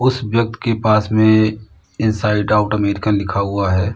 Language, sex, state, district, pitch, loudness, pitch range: Hindi, male, Uttar Pradesh, Lalitpur, 110 Hz, -16 LUFS, 100-110 Hz